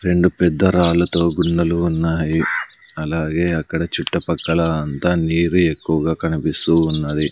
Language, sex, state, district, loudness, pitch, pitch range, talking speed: Telugu, male, Andhra Pradesh, Sri Satya Sai, -18 LUFS, 80 Hz, 80-85 Hz, 105 wpm